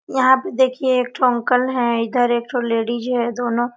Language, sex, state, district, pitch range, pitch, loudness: Hindi, female, Chhattisgarh, Korba, 240-255 Hz, 245 Hz, -18 LUFS